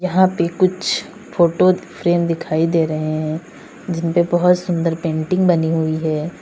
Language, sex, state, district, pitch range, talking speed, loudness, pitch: Hindi, female, Uttar Pradesh, Saharanpur, 160-180 Hz, 150 wpm, -18 LUFS, 170 Hz